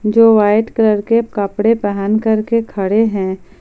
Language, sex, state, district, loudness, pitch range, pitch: Hindi, female, Jharkhand, Palamu, -14 LUFS, 205-225 Hz, 215 Hz